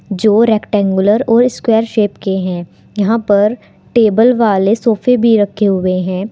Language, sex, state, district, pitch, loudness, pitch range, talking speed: Hindi, female, Uttar Pradesh, Saharanpur, 210 Hz, -13 LUFS, 195-230 Hz, 150 wpm